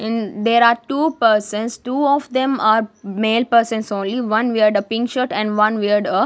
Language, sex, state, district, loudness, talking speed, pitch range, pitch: English, female, Maharashtra, Gondia, -17 LUFS, 210 wpm, 215-245 Hz, 225 Hz